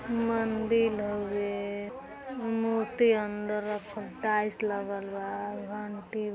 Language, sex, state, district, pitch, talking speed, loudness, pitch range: Hindi, female, Uttar Pradesh, Deoria, 210 Hz, 95 wpm, -31 LUFS, 205-225 Hz